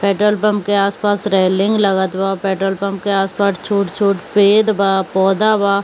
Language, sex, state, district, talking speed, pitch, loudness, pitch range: Hindi, female, Bihar, Kishanganj, 175 wpm, 200 Hz, -15 LUFS, 195-205 Hz